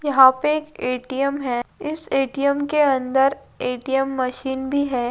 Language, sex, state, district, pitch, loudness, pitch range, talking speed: Hindi, female, Andhra Pradesh, Anantapur, 270 Hz, -21 LUFS, 260-285 Hz, 140 wpm